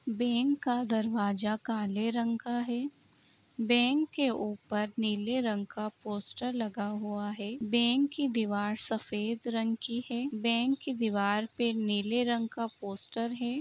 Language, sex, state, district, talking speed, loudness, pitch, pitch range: Hindi, female, Uttar Pradesh, Etah, 150 wpm, -32 LUFS, 230 Hz, 210-245 Hz